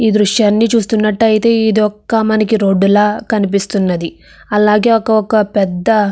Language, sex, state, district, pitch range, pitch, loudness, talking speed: Telugu, female, Andhra Pradesh, Krishna, 205-220 Hz, 215 Hz, -13 LUFS, 125 wpm